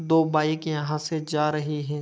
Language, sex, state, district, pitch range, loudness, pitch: Hindi, male, Bihar, Begusarai, 150-160 Hz, -25 LUFS, 155 Hz